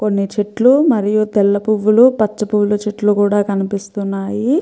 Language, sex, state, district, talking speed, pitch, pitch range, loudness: Telugu, female, Andhra Pradesh, Chittoor, 130 wpm, 210 Hz, 205-215 Hz, -15 LUFS